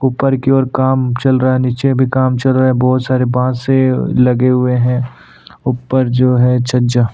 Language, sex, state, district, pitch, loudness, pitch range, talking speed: Hindi, male, Goa, North and South Goa, 130 Hz, -13 LUFS, 125-130 Hz, 210 wpm